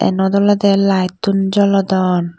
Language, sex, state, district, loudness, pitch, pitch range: Chakma, female, Tripura, Dhalai, -14 LUFS, 195 Hz, 185-200 Hz